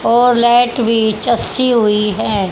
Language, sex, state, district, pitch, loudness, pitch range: Hindi, female, Haryana, Charkhi Dadri, 230 Hz, -13 LUFS, 215-240 Hz